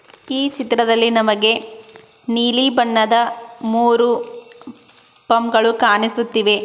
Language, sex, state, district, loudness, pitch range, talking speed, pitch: Kannada, female, Karnataka, Koppal, -16 LUFS, 225-245 Hz, 80 wpm, 235 Hz